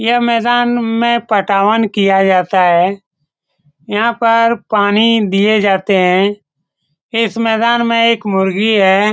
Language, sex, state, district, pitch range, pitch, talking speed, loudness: Hindi, male, Bihar, Saran, 190-230 Hz, 205 Hz, 125 wpm, -12 LUFS